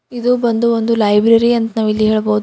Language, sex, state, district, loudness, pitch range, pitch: Kannada, female, Karnataka, Bidar, -14 LUFS, 215-235 Hz, 225 Hz